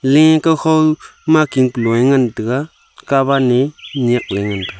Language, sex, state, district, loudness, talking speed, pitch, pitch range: Wancho, male, Arunachal Pradesh, Longding, -15 LUFS, 160 wpm, 135 Hz, 120-155 Hz